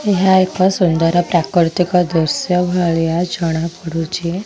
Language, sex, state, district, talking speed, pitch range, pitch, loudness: Odia, female, Odisha, Khordha, 95 wpm, 165-180 Hz, 175 Hz, -16 LUFS